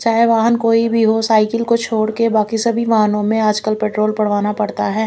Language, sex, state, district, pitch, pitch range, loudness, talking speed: Hindi, female, Chandigarh, Chandigarh, 220 Hz, 215-230 Hz, -16 LUFS, 215 wpm